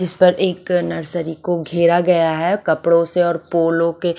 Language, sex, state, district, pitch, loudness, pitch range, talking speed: Hindi, female, Chandigarh, Chandigarh, 170 Hz, -17 LUFS, 165-175 Hz, 185 wpm